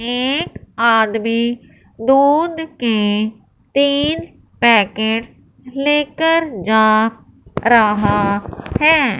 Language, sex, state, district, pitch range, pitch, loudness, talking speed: Hindi, male, Punjab, Fazilka, 220-285 Hz, 235 Hz, -16 LUFS, 65 wpm